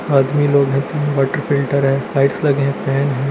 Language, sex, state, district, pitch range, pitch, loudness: Hindi, male, Bihar, Darbhanga, 135-145 Hz, 140 Hz, -16 LUFS